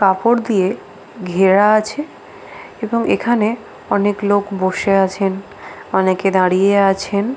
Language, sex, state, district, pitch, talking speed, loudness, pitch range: Bengali, female, West Bengal, Paschim Medinipur, 200 Hz, 115 wpm, -16 LUFS, 190-215 Hz